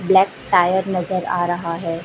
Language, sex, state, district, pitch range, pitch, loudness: Hindi, female, Chhattisgarh, Raipur, 170-190 Hz, 175 Hz, -19 LUFS